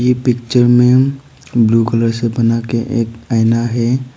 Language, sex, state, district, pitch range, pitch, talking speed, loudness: Hindi, male, Arunachal Pradesh, Papum Pare, 115-125 Hz, 120 Hz, 130 wpm, -14 LUFS